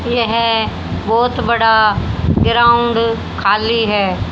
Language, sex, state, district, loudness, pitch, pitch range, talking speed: Hindi, female, Haryana, Jhajjar, -14 LUFS, 230 Hz, 220-235 Hz, 85 wpm